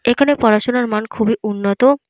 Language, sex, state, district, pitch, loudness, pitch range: Bengali, female, Jharkhand, Jamtara, 225 Hz, -16 LUFS, 215-250 Hz